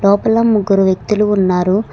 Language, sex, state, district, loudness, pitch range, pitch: Telugu, female, Telangana, Hyderabad, -13 LUFS, 190-210 Hz, 200 Hz